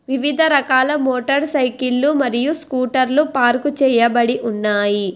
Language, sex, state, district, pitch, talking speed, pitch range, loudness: Telugu, female, Telangana, Hyderabad, 260 Hz, 105 wpm, 240-285 Hz, -16 LUFS